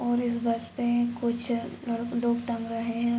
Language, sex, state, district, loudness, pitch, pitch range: Hindi, female, Uttar Pradesh, Ghazipur, -29 LUFS, 235 Hz, 230-240 Hz